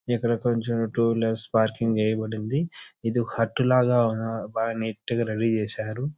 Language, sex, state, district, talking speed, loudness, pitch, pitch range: Telugu, male, Andhra Pradesh, Chittoor, 145 wpm, -25 LUFS, 115 Hz, 110-120 Hz